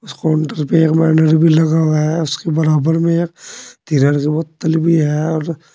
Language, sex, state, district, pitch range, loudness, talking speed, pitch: Hindi, male, Uttar Pradesh, Saharanpur, 155-165 Hz, -15 LUFS, 175 wpm, 160 Hz